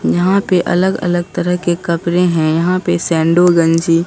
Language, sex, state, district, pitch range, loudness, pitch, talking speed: Hindi, female, Bihar, Katihar, 165-180 Hz, -14 LUFS, 175 Hz, 160 wpm